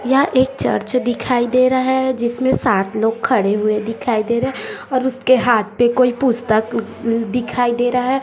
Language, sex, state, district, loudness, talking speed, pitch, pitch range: Hindi, female, Chhattisgarh, Raipur, -17 LUFS, 180 wpm, 245 Hz, 230-255 Hz